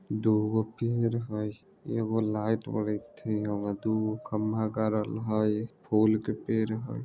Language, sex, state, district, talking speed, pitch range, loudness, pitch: Maithili, male, Bihar, Vaishali, 130 wpm, 105-115 Hz, -30 LUFS, 110 Hz